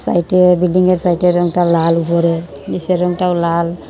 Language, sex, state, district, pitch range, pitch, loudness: Bengali, female, Tripura, Unakoti, 170-180 Hz, 175 Hz, -14 LUFS